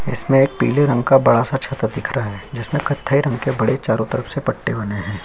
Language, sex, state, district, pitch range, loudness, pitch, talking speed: Hindi, male, Chhattisgarh, Kabirdham, 115-135 Hz, -18 LUFS, 135 Hz, 265 wpm